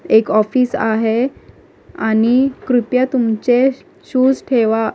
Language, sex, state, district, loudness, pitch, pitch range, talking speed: Marathi, female, Maharashtra, Gondia, -16 LUFS, 250 Hz, 225-260 Hz, 95 wpm